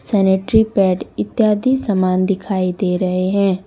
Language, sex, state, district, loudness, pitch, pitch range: Hindi, female, Jharkhand, Deoghar, -17 LUFS, 190 Hz, 185-210 Hz